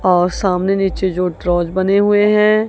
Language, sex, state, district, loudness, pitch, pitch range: Hindi, female, Punjab, Kapurthala, -15 LUFS, 190 Hz, 180-205 Hz